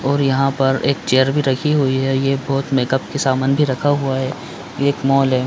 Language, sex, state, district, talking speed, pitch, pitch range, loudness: Hindi, male, Chhattisgarh, Bilaspur, 240 wpm, 135 Hz, 130-140 Hz, -17 LUFS